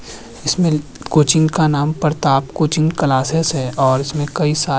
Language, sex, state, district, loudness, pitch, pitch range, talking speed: Hindi, male, Uttarakhand, Tehri Garhwal, -16 LUFS, 150 Hz, 135-155 Hz, 165 wpm